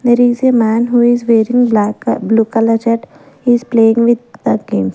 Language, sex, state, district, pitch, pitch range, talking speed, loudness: English, female, Maharashtra, Gondia, 230 Hz, 225-240 Hz, 220 wpm, -13 LUFS